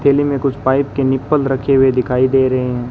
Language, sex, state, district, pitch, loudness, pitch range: Hindi, male, Rajasthan, Bikaner, 135 Hz, -15 LUFS, 130-140 Hz